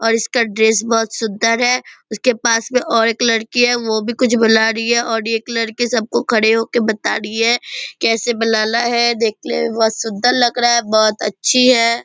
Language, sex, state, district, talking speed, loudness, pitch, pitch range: Hindi, female, Bihar, Purnia, 215 wpm, -15 LUFS, 230 Hz, 225-240 Hz